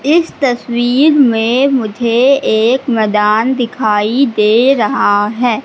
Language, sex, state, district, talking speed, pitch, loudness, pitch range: Hindi, female, Madhya Pradesh, Katni, 105 wpm, 240 Hz, -12 LUFS, 220-270 Hz